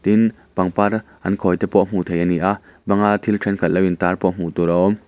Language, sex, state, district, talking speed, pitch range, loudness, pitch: Mizo, male, Mizoram, Aizawl, 270 wpm, 90-105 Hz, -19 LUFS, 95 Hz